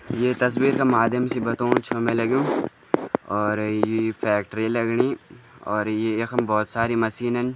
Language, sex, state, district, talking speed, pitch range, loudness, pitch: Garhwali, male, Uttarakhand, Uttarkashi, 160 wpm, 110-120 Hz, -23 LUFS, 115 Hz